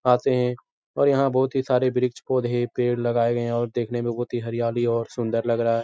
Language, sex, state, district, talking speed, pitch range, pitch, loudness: Hindi, male, Uttar Pradesh, Etah, 235 wpm, 120-125 Hz, 120 Hz, -23 LUFS